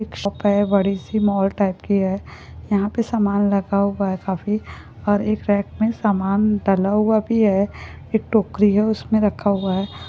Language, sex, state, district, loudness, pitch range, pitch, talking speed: Hindi, female, Jharkhand, Jamtara, -20 LUFS, 195-215 Hz, 205 Hz, 185 wpm